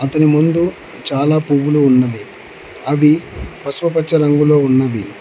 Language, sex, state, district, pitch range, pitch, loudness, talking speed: Telugu, male, Telangana, Mahabubabad, 135-155 Hz, 145 Hz, -14 LUFS, 105 wpm